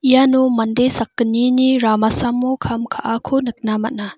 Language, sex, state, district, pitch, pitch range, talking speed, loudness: Garo, female, Meghalaya, West Garo Hills, 240 Hz, 225-260 Hz, 115 wpm, -17 LUFS